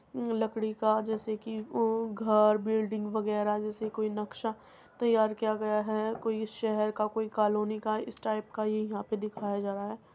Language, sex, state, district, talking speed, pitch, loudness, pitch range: Hindi, female, Uttar Pradesh, Muzaffarnagar, 185 wpm, 215 Hz, -31 LUFS, 215-220 Hz